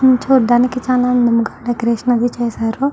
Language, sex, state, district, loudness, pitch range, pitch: Telugu, female, Andhra Pradesh, Chittoor, -15 LUFS, 235-255 Hz, 245 Hz